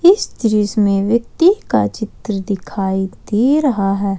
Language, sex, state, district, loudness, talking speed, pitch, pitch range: Hindi, female, Jharkhand, Ranchi, -16 LUFS, 145 wpm, 210 Hz, 195-240 Hz